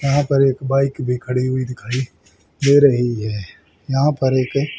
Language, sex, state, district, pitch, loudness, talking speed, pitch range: Hindi, male, Haryana, Rohtak, 130 Hz, -18 LUFS, 175 wpm, 125-140 Hz